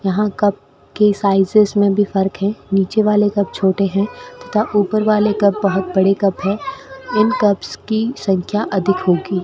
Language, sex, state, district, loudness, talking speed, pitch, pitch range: Hindi, female, Rajasthan, Bikaner, -17 LUFS, 180 wpm, 205 Hz, 195-210 Hz